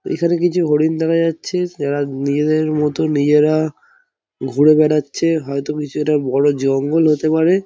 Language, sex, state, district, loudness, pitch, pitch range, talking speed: Bengali, male, West Bengal, Jhargram, -16 LUFS, 155 Hz, 145-165 Hz, 165 wpm